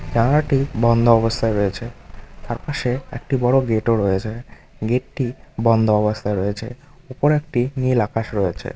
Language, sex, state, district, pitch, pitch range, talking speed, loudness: Bengali, male, West Bengal, Dakshin Dinajpur, 120 Hz, 110-130 Hz, 135 wpm, -20 LUFS